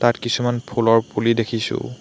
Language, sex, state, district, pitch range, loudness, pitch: Assamese, male, Assam, Hailakandi, 115-120 Hz, -20 LUFS, 115 Hz